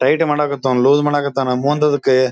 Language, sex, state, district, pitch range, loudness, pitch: Kannada, male, Karnataka, Bijapur, 130-145 Hz, -16 LUFS, 140 Hz